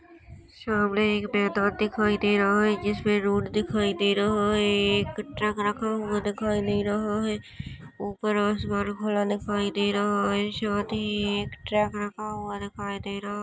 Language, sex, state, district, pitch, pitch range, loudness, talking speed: Hindi, female, Maharashtra, Nagpur, 205 Hz, 205-210 Hz, -26 LUFS, 165 wpm